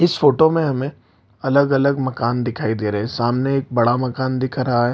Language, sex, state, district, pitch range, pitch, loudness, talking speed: Hindi, male, Bihar, Lakhisarai, 120-140 Hz, 130 Hz, -19 LUFS, 220 wpm